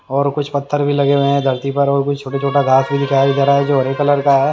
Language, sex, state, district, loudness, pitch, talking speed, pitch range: Hindi, male, Haryana, Jhajjar, -15 LUFS, 140 Hz, 305 wpm, 135-140 Hz